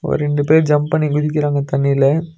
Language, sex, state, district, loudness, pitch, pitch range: Tamil, male, Tamil Nadu, Nilgiris, -16 LUFS, 150 Hz, 140-155 Hz